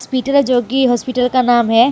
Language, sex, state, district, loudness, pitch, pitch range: Hindi, female, Jharkhand, Deoghar, -14 LUFS, 250 Hz, 245-260 Hz